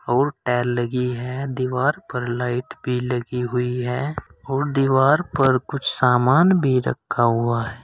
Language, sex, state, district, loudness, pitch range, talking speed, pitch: Hindi, male, Uttar Pradesh, Saharanpur, -21 LUFS, 125-135 Hz, 140 wpm, 125 Hz